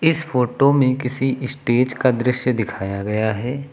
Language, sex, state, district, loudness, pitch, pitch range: Hindi, male, Uttar Pradesh, Lucknow, -20 LUFS, 125 Hz, 120-135 Hz